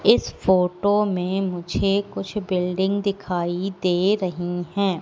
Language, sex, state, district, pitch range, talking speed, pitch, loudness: Hindi, female, Madhya Pradesh, Katni, 180-200 Hz, 120 wpm, 190 Hz, -23 LUFS